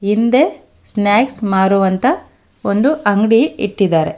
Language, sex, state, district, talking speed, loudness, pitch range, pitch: Kannada, female, Karnataka, Bangalore, 85 wpm, -15 LUFS, 195-245 Hz, 205 Hz